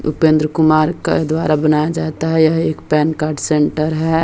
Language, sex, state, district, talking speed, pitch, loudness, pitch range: Hindi, female, Bihar, Jahanabad, 185 wpm, 155 Hz, -15 LUFS, 155-160 Hz